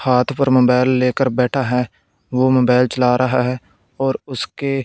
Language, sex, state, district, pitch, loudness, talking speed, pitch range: Hindi, male, Punjab, Fazilka, 125 Hz, -17 LUFS, 175 wpm, 125-130 Hz